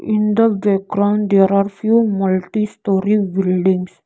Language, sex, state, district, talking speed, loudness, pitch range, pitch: English, female, Arunachal Pradesh, Lower Dibang Valley, 135 wpm, -16 LUFS, 195-210 Hz, 205 Hz